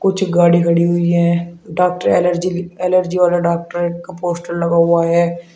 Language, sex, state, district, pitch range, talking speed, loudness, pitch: Hindi, male, Uttar Pradesh, Shamli, 170-180 Hz, 175 wpm, -16 LUFS, 170 Hz